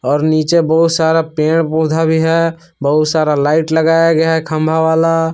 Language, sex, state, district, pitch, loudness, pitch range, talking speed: Hindi, male, Jharkhand, Palamu, 160 Hz, -13 LUFS, 155-165 Hz, 180 wpm